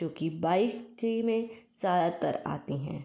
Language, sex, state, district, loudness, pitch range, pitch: Hindi, female, Uttar Pradesh, Varanasi, -31 LUFS, 170-230 Hz, 220 Hz